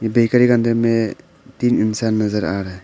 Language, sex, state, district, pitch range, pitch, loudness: Hindi, male, Arunachal Pradesh, Papum Pare, 105-120 Hz, 115 Hz, -17 LUFS